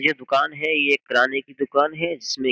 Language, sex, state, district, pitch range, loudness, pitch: Hindi, male, Uttar Pradesh, Jyotiba Phule Nagar, 135-155 Hz, -21 LUFS, 140 Hz